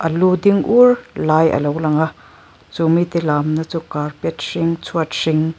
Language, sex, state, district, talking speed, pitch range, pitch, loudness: Mizo, female, Mizoram, Aizawl, 170 wpm, 155-170 Hz, 160 Hz, -17 LUFS